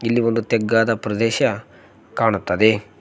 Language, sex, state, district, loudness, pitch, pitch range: Kannada, male, Karnataka, Koppal, -19 LUFS, 115 Hz, 105-115 Hz